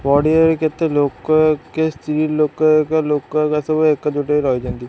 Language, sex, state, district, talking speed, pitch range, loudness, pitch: Odia, male, Odisha, Khordha, 145 wpm, 145-155 Hz, -17 LUFS, 155 Hz